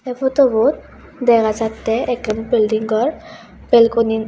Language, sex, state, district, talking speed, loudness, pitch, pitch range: Chakma, female, Tripura, West Tripura, 110 wpm, -16 LUFS, 230 Hz, 220-245 Hz